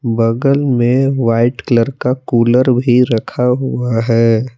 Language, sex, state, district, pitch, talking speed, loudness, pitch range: Hindi, male, Jharkhand, Palamu, 125 Hz, 130 wpm, -13 LUFS, 115-130 Hz